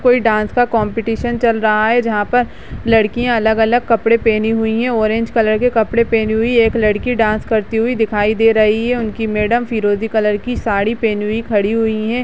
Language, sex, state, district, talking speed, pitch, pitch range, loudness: Hindi, female, Uttarakhand, Uttarkashi, 200 wpm, 225 Hz, 215-235 Hz, -15 LUFS